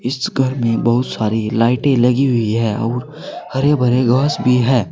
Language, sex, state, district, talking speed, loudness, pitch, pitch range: Hindi, male, Uttar Pradesh, Saharanpur, 185 wpm, -16 LUFS, 125 Hz, 115-130 Hz